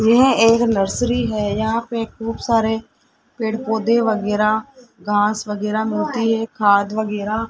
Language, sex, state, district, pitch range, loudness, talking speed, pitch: Hindi, male, Rajasthan, Jaipur, 210-230 Hz, -19 LUFS, 145 wpm, 220 Hz